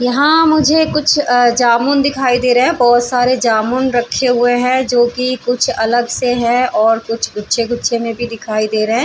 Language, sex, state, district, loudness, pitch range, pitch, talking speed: Hindi, female, Bihar, Darbhanga, -13 LUFS, 235-255 Hz, 245 Hz, 200 wpm